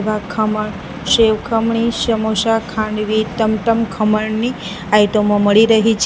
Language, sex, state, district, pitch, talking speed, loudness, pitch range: Gujarati, female, Gujarat, Valsad, 215 Hz, 120 wpm, -16 LUFS, 210-225 Hz